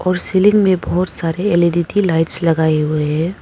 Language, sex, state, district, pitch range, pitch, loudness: Hindi, female, Arunachal Pradesh, Papum Pare, 165-185 Hz, 170 Hz, -15 LUFS